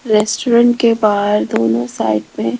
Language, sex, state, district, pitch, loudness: Hindi, female, Rajasthan, Jaipur, 210 Hz, -14 LUFS